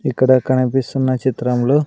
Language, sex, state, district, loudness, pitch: Telugu, male, Andhra Pradesh, Sri Satya Sai, -17 LUFS, 130 Hz